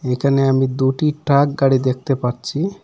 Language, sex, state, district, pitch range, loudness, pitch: Bengali, male, Assam, Hailakandi, 130-140 Hz, -17 LUFS, 135 Hz